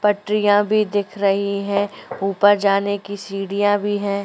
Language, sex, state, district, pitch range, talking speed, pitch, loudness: Hindi, female, Chhattisgarh, Korba, 200-205 Hz, 155 wpm, 205 Hz, -19 LUFS